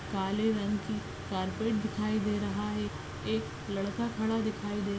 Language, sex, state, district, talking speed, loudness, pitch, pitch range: Hindi, female, Maharashtra, Chandrapur, 170 wpm, -33 LUFS, 205 Hz, 145-215 Hz